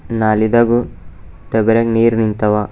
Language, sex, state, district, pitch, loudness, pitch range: Kannada, male, Karnataka, Bidar, 110 Hz, -14 LUFS, 105-115 Hz